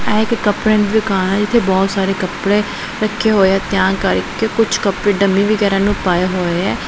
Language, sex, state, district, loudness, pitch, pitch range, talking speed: Punjabi, female, Punjab, Pathankot, -15 LUFS, 200 Hz, 190-215 Hz, 200 wpm